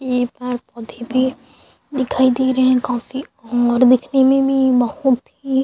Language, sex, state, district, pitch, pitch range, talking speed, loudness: Hindi, female, Chhattisgarh, Sukma, 255 Hz, 245-265 Hz, 170 wpm, -17 LUFS